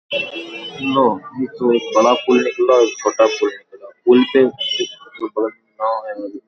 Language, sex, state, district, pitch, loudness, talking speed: Hindi, male, Bihar, Bhagalpur, 135 Hz, -17 LUFS, 110 wpm